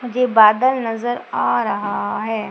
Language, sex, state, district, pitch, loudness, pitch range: Hindi, female, Madhya Pradesh, Umaria, 240 Hz, -17 LUFS, 220-250 Hz